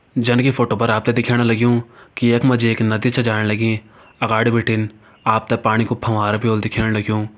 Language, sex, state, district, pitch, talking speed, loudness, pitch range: Hindi, male, Uttarakhand, Tehri Garhwal, 115 Hz, 225 wpm, -18 LUFS, 110-120 Hz